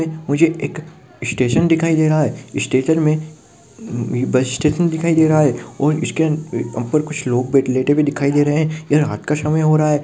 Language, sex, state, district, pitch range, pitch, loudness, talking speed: Hindi, male, Rajasthan, Nagaur, 130-155 Hz, 150 Hz, -17 LUFS, 205 wpm